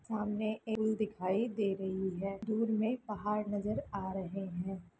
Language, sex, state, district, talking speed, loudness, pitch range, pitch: Hindi, female, Bihar, Lakhisarai, 145 wpm, -36 LUFS, 190-215 Hz, 210 Hz